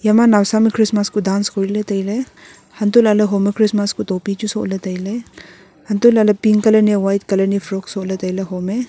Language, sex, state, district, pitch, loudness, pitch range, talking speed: Wancho, female, Arunachal Pradesh, Longding, 205 Hz, -16 LUFS, 195-215 Hz, 210 wpm